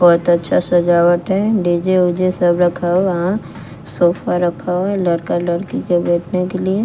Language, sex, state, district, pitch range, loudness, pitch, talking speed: Hindi, female, Bihar, West Champaran, 175-185 Hz, -16 LUFS, 175 Hz, 165 wpm